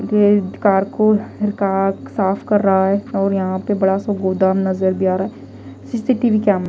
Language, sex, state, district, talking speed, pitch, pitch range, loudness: Hindi, female, Delhi, New Delhi, 195 wpm, 195 Hz, 190-210 Hz, -17 LUFS